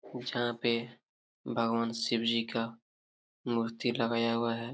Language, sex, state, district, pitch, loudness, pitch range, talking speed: Hindi, male, Jharkhand, Jamtara, 115 Hz, -32 LUFS, 115-120 Hz, 125 wpm